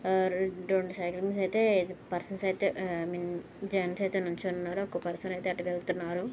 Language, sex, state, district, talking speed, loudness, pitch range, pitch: Telugu, female, Andhra Pradesh, Krishna, 170 wpm, -32 LUFS, 175-190 Hz, 185 Hz